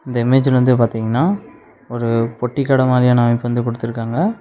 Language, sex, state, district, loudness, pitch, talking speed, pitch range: Tamil, male, Tamil Nadu, Namakkal, -17 LUFS, 120 Hz, 150 wpm, 115-130 Hz